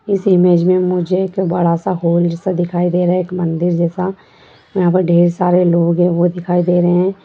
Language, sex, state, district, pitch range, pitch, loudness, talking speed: Hindi, female, Bihar, Sitamarhi, 175-185 Hz, 175 Hz, -15 LUFS, 225 wpm